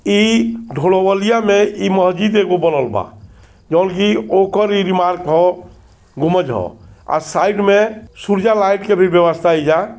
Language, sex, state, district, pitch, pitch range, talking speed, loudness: Bhojpuri, male, Bihar, Gopalganj, 185 Hz, 160-205 Hz, 140 wpm, -15 LUFS